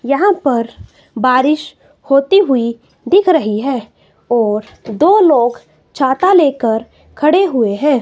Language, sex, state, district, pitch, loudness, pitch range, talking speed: Hindi, female, Himachal Pradesh, Shimla, 270 Hz, -13 LUFS, 235-315 Hz, 120 wpm